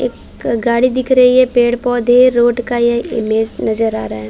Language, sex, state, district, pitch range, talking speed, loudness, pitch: Hindi, female, Chhattisgarh, Bilaspur, 225-250 Hz, 195 wpm, -13 LUFS, 240 Hz